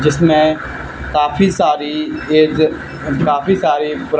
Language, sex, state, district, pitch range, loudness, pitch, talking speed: Hindi, male, Haryana, Charkhi Dadri, 150-155 Hz, -15 LUFS, 155 Hz, 130 wpm